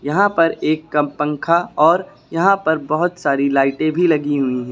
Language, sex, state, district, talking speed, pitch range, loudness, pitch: Hindi, male, Uttar Pradesh, Lucknow, 190 wpm, 145-170 Hz, -17 LUFS, 155 Hz